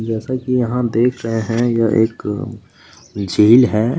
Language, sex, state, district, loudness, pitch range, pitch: Hindi, male, Chhattisgarh, Kabirdham, -16 LUFS, 110-125 Hz, 115 Hz